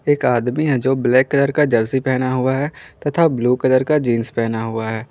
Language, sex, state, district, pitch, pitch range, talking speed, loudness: Hindi, male, Jharkhand, Garhwa, 130 Hz, 120-140 Hz, 225 wpm, -18 LUFS